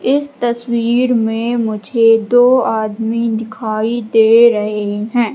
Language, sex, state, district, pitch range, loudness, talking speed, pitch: Hindi, female, Madhya Pradesh, Katni, 220-240 Hz, -14 LUFS, 110 wpm, 230 Hz